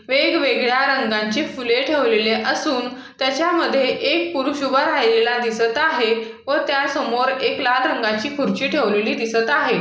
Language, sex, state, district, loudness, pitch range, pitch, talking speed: Marathi, female, Maharashtra, Aurangabad, -19 LUFS, 240-290 Hz, 265 Hz, 130 wpm